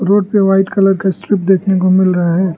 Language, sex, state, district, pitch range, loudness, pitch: Hindi, male, Arunachal Pradesh, Lower Dibang Valley, 185-195 Hz, -13 LUFS, 190 Hz